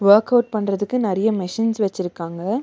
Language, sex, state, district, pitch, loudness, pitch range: Tamil, female, Tamil Nadu, Nilgiris, 205 Hz, -20 LUFS, 190-225 Hz